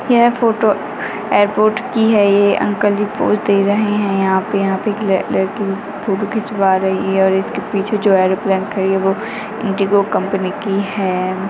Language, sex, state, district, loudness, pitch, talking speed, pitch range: Hindi, female, Rajasthan, Nagaur, -16 LUFS, 200 Hz, 170 wpm, 195-210 Hz